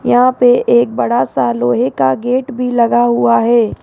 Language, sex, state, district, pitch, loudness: Hindi, female, Rajasthan, Jaipur, 235 Hz, -13 LUFS